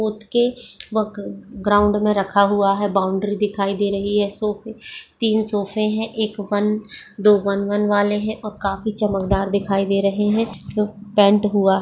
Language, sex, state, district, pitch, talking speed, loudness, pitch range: Hindi, female, Bihar, Begusarai, 205 Hz, 180 wpm, -20 LUFS, 200-215 Hz